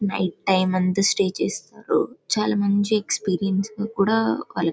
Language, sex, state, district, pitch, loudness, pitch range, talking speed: Telugu, female, Karnataka, Bellary, 195 Hz, -22 LUFS, 185-205 Hz, 150 wpm